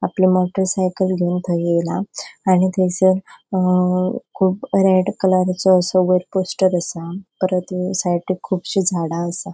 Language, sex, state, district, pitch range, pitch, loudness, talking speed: Konkani, female, Goa, North and South Goa, 180-190 Hz, 185 Hz, -18 LUFS, 130 wpm